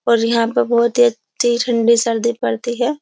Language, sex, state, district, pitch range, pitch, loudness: Hindi, female, Uttar Pradesh, Jyotiba Phule Nagar, 230-240 Hz, 235 Hz, -16 LUFS